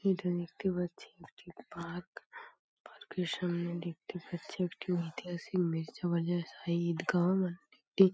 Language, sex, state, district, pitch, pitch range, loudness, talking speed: Bengali, female, West Bengal, Paschim Medinipur, 175 Hz, 170-180 Hz, -35 LUFS, 140 wpm